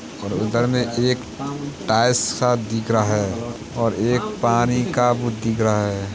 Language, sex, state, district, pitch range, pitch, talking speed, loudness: Hindi, male, Uttar Pradesh, Hamirpur, 110-125 Hz, 115 Hz, 165 wpm, -21 LUFS